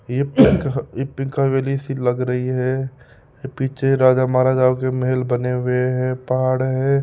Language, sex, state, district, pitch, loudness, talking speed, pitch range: Hindi, male, Rajasthan, Jaipur, 130 Hz, -19 LUFS, 160 wpm, 125-135 Hz